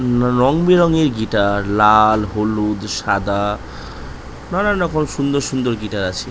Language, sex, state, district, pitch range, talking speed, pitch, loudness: Bengali, male, West Bengal, North 24 Parganas, 100-140 Hz, 135 wpm, 110 Hz, -17 LUFS